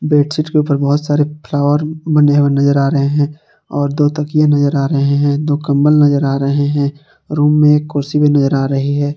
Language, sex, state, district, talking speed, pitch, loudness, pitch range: Hindi, male, Jharkhand, Palamu, 220 wpm, 145 Hz, -14 LUFS, 140-150 Hz